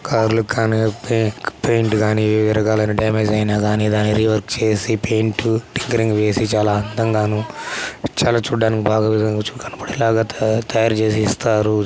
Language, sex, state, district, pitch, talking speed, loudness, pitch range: Telugu, male, Andhra Pradesh, Chittoor, 110 Hz, 125 wpm, -18 LUFS, 105-115 Hz